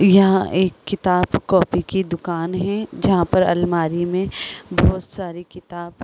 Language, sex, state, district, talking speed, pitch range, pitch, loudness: Hindi, female, Chhattisgarh, Rajnandgaon, 150 wpm, 175-190 Hz, 180 Hz, -19 LUFS